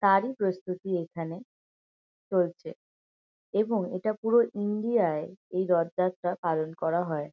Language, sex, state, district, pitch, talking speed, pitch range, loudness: Bengali, female, West Bengal, Kolkata, 185 Hz, 115 wpm, 170-205 Hz, -29 LUFS